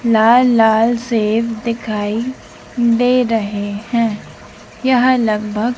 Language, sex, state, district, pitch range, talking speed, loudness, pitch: Hindi, female, Madhya Pradesh, Dhar, 215-240 Hz, 95 wpm, -15 LUFS, 230 Hz